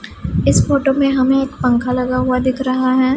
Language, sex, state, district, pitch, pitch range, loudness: Hindi, female, Punjab, Pathankot, 260 Hz, 255-270 Hz, -16 LUFS